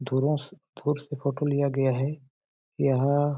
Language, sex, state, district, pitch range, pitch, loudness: Hindi, male, Chhattisgarh, Balrampur, 135-145 Hz, 140 Hz, -27 LUFS